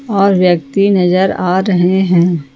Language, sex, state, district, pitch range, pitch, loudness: Hindi, female, Jharkhand, Ranchi, 175-195 Hz, 185 Hz, -12 LUFS